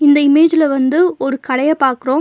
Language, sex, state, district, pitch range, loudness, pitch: Tamil, female, Tamil Nadu, Nilgiris, 270-310 Hz, -13 LUFS, 290 Hz